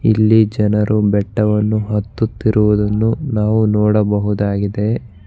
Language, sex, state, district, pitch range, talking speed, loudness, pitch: Kannada, male, Karnataka, Bangalore, 105-110 Hz, 70 wpm, -16 LUFS, 105 Hz